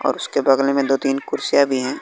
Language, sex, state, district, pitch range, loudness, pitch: Hindi, male, Bihar, West Champaran, 135-140 Hz, -19 LUFS, 135 Hz